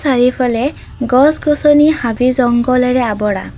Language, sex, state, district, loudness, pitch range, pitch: Assamese, female, Assam, Kamrup Metropolitan, -13 LUFS, 245-285 Hz, 250 Hz